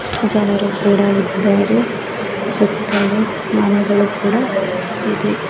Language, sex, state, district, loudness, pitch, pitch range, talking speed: Kannada, female, Karnataka, Bellary, -16 LUFS, 205 Hz, 200-210 Hz, 75 wpm